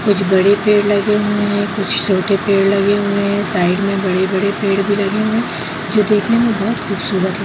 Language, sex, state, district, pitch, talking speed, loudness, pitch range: Hindi, female, Bihar, Jahanabad, 200 Hz, 200 wpm, -15 LUFS, 195-210 Hz